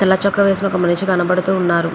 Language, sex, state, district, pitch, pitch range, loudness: Telugu, female, Andhra Pradesh, Chittoor, 185 Hz, 175-195 Hz, -16 LUFS